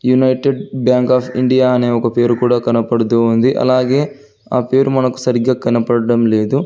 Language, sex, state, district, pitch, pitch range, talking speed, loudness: Telugu, male, Telangana, Hyderabad, 125 Hz, 120-130 Hz, 145 wpm, -14 LUFS